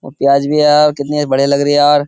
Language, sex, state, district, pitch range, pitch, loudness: Hindi, male, Uttar Pradesh, Jyotiba Phule Nagar, 140-150 Hz, 145 Hz, -12 LUFS